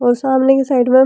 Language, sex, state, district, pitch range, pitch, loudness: Rajasthani, female, Rajasthan, Churu, 250-270 Hz, 260 Hz, -13 LUFS